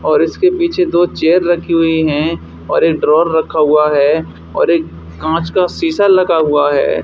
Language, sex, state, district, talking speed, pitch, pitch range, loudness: Hindi, male, Haryana, Charkhi Dadri, 185 wpm, 160 Hz, 150-175 Hz, -13 LUFS